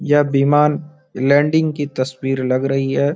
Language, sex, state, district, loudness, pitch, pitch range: Hindi, male, Bihar, Araria, -17 LUFS, 145 Hz, 135-150 Hz